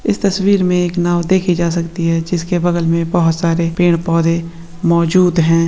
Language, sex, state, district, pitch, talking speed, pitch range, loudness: Hindi, female, Maharashtra, Sindhudurg, 170 Hz, 190 wpm, 165-175 Hz, -15 LUFS